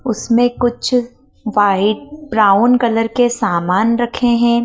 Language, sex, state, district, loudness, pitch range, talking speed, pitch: Hindi, female, Madhya Pradesh, Dhar, -15 LUFS, 220-245 Hz, 115 wpm, 235 Hz